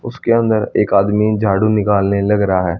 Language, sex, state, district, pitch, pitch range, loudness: Hindi, male, Haryana, Charkhi Dadri, 105 Hz, 100-110 Hz, -15 LUFS